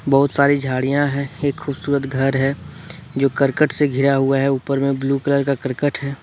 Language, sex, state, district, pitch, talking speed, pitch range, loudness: Hindi, male, Jharkhand, Deoghar, 140 Hz, 200 wpm, 135-140 Hz, -19 LUFS